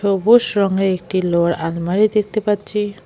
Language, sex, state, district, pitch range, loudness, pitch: Bengali, female, West Bengal, Alipurduar, 180-210 Hz, -17 LUFS, 200 Hz